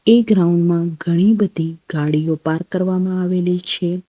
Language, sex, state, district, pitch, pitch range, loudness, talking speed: Gujarati, female, Gujarat, Valsad, 175 Hz, 165-185 Hz, -17 LUFS, 145 wpm